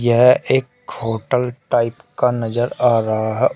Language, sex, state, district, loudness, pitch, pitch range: Hindi, male, Uttar Pradesh, Shamli, -18 LUFS, 120 Hz, 115-125 Hz